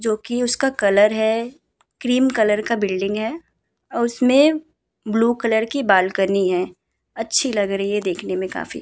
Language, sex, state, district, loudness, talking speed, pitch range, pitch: Hindi, female, Uttar Pradesh, Muzaffarnagar, -19 LUFS, 165 wpm, 200-245 Hz, 220 Hz